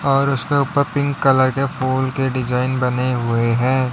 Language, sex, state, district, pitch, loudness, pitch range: Hindi, male, Uttar Pradesh, Lalitpur, 130 Hz, -18 LUFS, 125-140 Hz